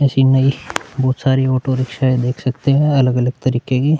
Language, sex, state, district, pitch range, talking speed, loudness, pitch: Hindi, male, Chhattisgarh, Korba, 130-135 Hz, 195 wpm, -16 LUFS, 130 Hz